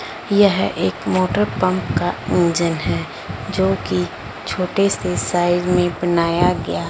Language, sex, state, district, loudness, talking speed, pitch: Hindi, female, Punjab, Fazilka, -19 LUFS, 120 wpm, 170 Hz